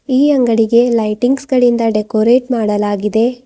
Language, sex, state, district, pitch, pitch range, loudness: Kannada, female, Karnataka, Bidar, 235 Hz, 220-250 Hz, -13 LUFS